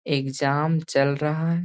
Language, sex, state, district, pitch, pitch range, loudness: Hindi, male, Bihar, Gaya, 150 Hz, 140-160 Hz, -23 LUFS